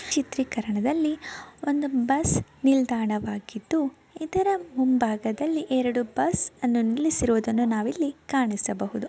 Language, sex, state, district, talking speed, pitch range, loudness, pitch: Kannada, female, Karnataka, Mysore, 90 wpm, 230-300 Hz, -25 LUFS, 260 Hz